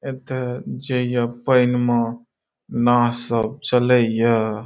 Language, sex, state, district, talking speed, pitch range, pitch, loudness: Maithili, male, Bihar, Saharsa, 75 wpm, 115-125 Hz, 120 Hz, -20 LUFS